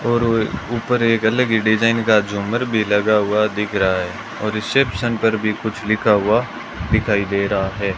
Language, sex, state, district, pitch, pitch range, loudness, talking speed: Hindi, male, Rajasthan, Bikaner, 110 Hz, 105-115 Hz, -18 LUFS, 190 wpm